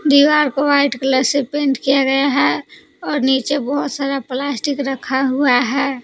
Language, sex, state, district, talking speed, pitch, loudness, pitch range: Hindi, female, Jharkhand, Palamu, 170 wpm, 275 Hz, -16 LUFS, 265-285 Hz